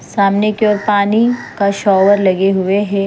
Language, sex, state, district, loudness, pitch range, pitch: Hindi, female, Punjab, Fazilka, -13 LUFS, 195-210 Hz, 200 Hz